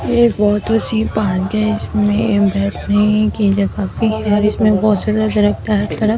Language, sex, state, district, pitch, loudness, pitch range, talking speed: Hindi, female, Delhi, New Delhi, 210 Hz, -15 LUFS, 135-215 Hz, 195 wpm